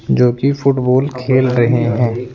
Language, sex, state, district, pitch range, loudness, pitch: Hindi, male, Rajasthan, Jaipur, 120-130 Hz, -14 LUFS, 125 Hz